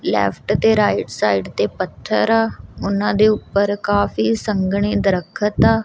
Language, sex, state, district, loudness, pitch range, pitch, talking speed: Punjabi, female, Punjab, Kapurthala, -18 LUFS, 200-215 Hz, 205 Hz, 145 wpm